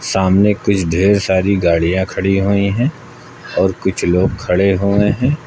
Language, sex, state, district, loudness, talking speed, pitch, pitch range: Hindi, male, Uttar Pradesh, Lucknow, -15 LUFS, 155 wpm, 100 Hz, 95-100 Hz